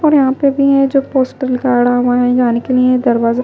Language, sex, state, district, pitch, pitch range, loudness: Hindi, female, Punjab, Pathankot, 255 Hz, 245-275 Hz, -13 LUFS